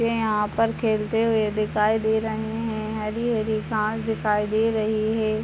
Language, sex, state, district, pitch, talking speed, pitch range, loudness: Hindi, male, Bihar, Purnia, 220 Hz, 165 wpm, 215-225 Hz, -24 LUFS